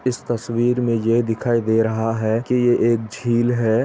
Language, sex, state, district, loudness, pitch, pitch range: Hindi, male, Chhattisgarh, Bastar, -19 LUFS, 115 Hz, 115-120 Hz